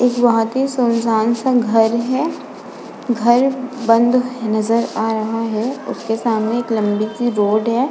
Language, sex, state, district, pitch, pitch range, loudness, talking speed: Hindi, female, Uttar Pradesh, Budaun, 235 Hz, 225-250 Hz, -17 LUFS, 150 wpm